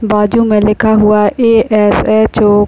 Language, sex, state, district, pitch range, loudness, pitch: Hindi, male, Uttar Pradesh, Deoria, 210-220 Hz, -10 LUFS, 215 Hz